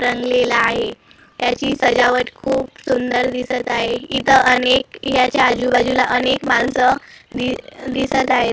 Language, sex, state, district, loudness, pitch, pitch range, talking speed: Marathi, female, Maharashtra, Gondia, -17 LUFS, 250 Hz, 245-265 Hz, 125 wpm